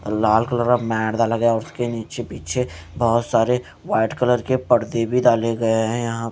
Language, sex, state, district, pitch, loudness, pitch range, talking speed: Hindi, male, Punjab, Fazilka, 115 Hz, -20 LUFS, 110-120 Hz, 190 wpm